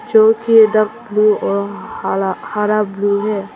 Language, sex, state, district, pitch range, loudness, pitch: Hindi, female, Arunachal Pradesh, Papum Pare, 200-215 Hz, -15 LUFS, 210 Hz